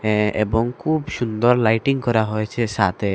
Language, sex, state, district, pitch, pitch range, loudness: Bengali, male, Assam, Hailakandi, 110 Hz, 110-120 Hz, -20 LUFS